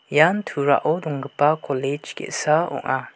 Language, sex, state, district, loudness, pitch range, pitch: Garo, male, Meghalaya, West Garo Hills, -22 LUFS, 140-155 Hz, 145 Hz